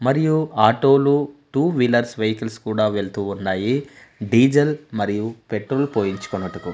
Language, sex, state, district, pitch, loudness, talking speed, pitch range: Telugu, male, Andhra Pradesh, Manyam, 115 Hz, -20 LUFS, 115 wpm, 105-140 Hz